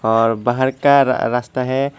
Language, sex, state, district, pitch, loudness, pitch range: Hindi, male, Tripura, Dhalai, 130 Hz, -17 LUFS, 115-135 Hz